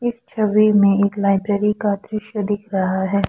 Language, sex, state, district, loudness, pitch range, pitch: Hindi, female, Assam, Kamrup Metropolitan, -18 LUFS, 200-215 Hz, 205 Hz